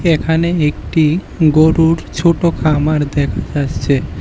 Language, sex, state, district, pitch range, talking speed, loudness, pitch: Bengali, male, Tripura, West Tripura, 150-165 Hz, 100 wpm, -14 LUFS, 155 Hz